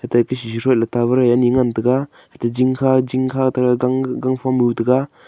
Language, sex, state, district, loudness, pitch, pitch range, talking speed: Wancho, male, Arunachal Pradesh, Longding, -17 LUFS, 125 Hz, 120-130 Hz, 170 wpm